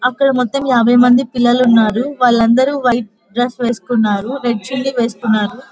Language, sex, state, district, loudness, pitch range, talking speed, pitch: Telugu, female, Andhra Pradesh, Guntur, -14 LUFS, 230-255 Hz, 135 wpm, 245 Hz